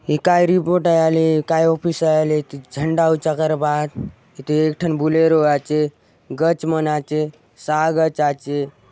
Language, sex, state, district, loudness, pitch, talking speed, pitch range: Halbi, male, Chhattisgarh, Bastar, -18 LUFS, 155 Hz, 170 wpm, 150-160 Hz